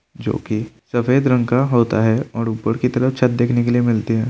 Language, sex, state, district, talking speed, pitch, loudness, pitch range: Hindi, male, Bihar, Kishanganj, 235 wpm, 120 Hz, -18 LUFS, 110-125 Hz